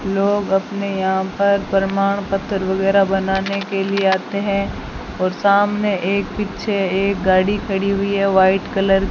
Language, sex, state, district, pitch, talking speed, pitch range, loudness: Hindi, female, Rajasthan, Bikaner, 195 Hz, 160 wpm, 195-200 Hz, -18 LUFS